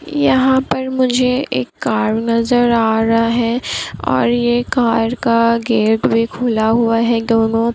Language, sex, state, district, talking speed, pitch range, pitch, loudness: Hindi, female, Bihar, Kishanganj, 155 wpm, 225-240 Hz, 230 Hz, -15 LUFS